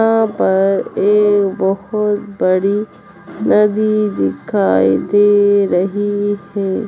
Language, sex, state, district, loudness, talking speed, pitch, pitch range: Hindi, female, Bihar, Darbhanga, -15 LUFS, 85 wpm, 205 Hz, 195-210 Hz